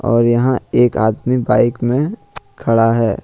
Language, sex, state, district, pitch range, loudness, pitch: Hindi, male, Jharkhand, Ranchi, 115-125 Hz, -15 LUFS, 120 Hz